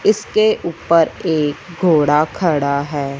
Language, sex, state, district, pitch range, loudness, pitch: Hindi, male, Punjab, Fazilka, 145-175 Hz, -16 LUFS, 155 Hz